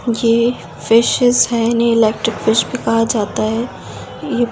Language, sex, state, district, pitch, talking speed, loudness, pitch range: Hindi, female, Delhi, New Delhi, 230 Hz, 160 wpm, -15 LUFS, 225-240 Hz